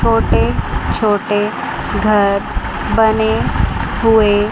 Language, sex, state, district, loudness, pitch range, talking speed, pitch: Hindi, male, Chandigarh, Chandigarh, -15 LUFS, 205-220 Hz, 65 wpm, 210 Hz